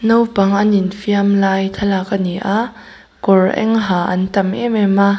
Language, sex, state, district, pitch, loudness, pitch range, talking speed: Mizo, female, Mizoram, Aizawl, 200 Hz, -15 LUFS, 195-215 Hz, 175 wpm